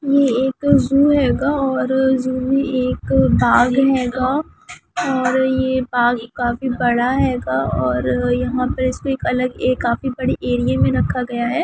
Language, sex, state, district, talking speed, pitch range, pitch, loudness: Hindi, female, West Bengal, Kolkata, 170 wpm, 240-265 Hz, 255 Hz, -18 LUFS